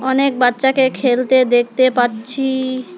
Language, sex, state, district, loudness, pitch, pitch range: Bengali, female, West Bengal, Alipurduar, -15 LUFS, 255 Hz, 245-265 Hz